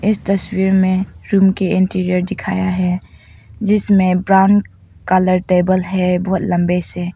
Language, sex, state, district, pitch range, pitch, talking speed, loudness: Hindi, female, Arunachal Pradesh, Papum Pare, 180-195 Hz, 185 Hz, 135 wpm, -15 LUFS